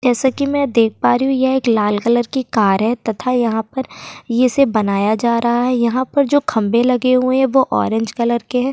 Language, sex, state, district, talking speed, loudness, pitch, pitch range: Hindi, female, Uttar Pradesh, Jyotiba Phule Nagar, 240 wpm, -16 LUFS, 245 Hz, 225-260 Hz